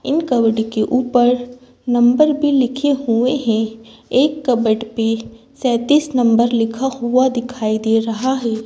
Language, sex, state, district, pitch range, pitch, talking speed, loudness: Hindi, female, Madhya Pradesh, Bhopal, 225-260 Hz, 245 Hz, 140 wpm, -17 LUFS